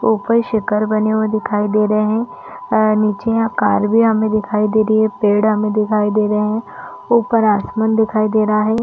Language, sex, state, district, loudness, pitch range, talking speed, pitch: Hindi, female, Chhattisgarh, Bastar, -16 LUFS, 210-220 Hz, 210 wpm, 215 Hz